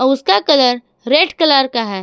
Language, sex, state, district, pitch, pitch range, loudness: Hindi, female, Jharkhand, Garhwa, 260 Hz, 235-290 Hz, -13 LUFS